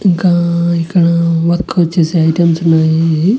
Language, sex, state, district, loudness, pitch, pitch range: Telugu, male, Andhra Pradesh, Annamaya, -12 LUFS, 170 Hz, 165-175 Hz